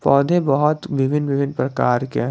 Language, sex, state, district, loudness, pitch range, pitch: Hindi, male, Jharkhand, Garhwa, -19 LUFS, 135-150 Hz, 140 Hz